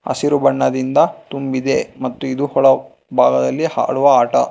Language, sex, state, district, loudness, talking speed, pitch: Kannada, male, Karnataka, Bangalore, -16 LUFS, 120 wpm, 130 Hz